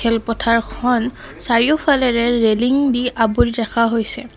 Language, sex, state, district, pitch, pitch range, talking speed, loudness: Assamese, female, Assam, Kamrup Metropolitan, 235 Hz, 230-250 Hz, 95 wpm, -17 LUFS